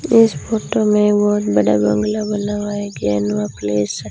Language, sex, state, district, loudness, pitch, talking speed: Hindi, female, Rajasthan, Jaisalmer, -17 LUFS, 205 Hz, 190 wpm